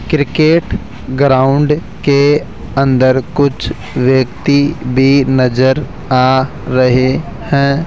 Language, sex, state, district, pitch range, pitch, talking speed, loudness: Hindi, male, Rajasthan, Jaipur, 130-145 Hz, 135 Hz, 85 wpm, -12 LUFS